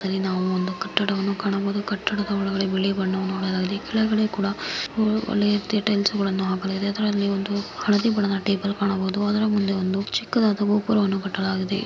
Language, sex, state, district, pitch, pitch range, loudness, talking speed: Kannada, female, Karnataka, Mysore, 200 Hz, 195-205 Hz, -23 LUFS, 145 wpm